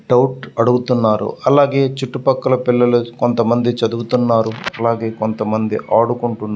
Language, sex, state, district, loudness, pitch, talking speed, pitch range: Telugu, male, Andhra Pradesh, Visakhapatnam, -16 LUFS, 120 Hz, 100 wpm, 115-125 Hz